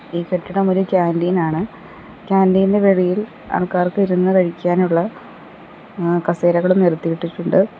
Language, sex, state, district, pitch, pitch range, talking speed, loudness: Malayalam, female, Kerala, Kollam, 180 Hz, 170-190 Hz, 110 wpm, -17 LUFS